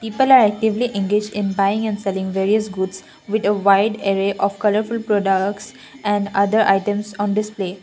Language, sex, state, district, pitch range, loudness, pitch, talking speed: English, female, Assam, Kamrup Metropolitan, 195-215 Hz, -19 LUFS, 205 Hz, 155 wpm